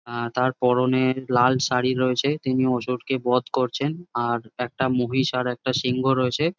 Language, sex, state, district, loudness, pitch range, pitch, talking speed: Bengali, male, West Bengal, Jhargram, -23 LUFS, 125-130 Hz, 125 Hz, 165 wpm